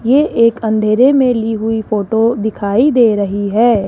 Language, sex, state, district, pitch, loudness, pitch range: Hindi, female, Rajasthan, Jaipur, 225 Hz, -13 LUFS, 215-240 Hz